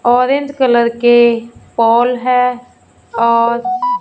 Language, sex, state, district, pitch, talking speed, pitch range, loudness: Hindi, female, Punjab, Fazilka, 245 Hz, 90 wpm, 235-250 Hz, -13 LUFS